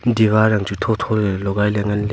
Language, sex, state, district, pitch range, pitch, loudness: Wancho, male, Arunachal Pradesh, Longding, 100-110 Hz, 105 Hz, -18 LUFS